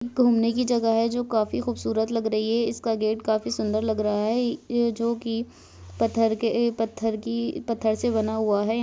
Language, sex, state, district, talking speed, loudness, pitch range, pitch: Hindi, female, Bihar, Samastipur, 195 wpm, -25 LUFS, 220-235 Hz, 225 Hz